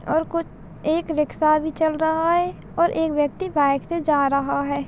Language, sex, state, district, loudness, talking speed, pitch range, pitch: Hindi, female, Chhattisgarh, Balrampur, -22 LUFS, 210 wpm, 290-330 Hz, 315 Hz